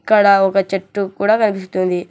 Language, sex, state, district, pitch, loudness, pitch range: Telugu, male, Telangana, Hyderabad, 195 Hz, -16 LUFS, 185-205 Hz